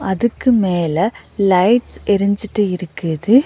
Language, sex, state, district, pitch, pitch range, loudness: Tamil, female, Tamil Nadu, Nilgiris, 200 Hz, 180-230 Hz, -17 LUFS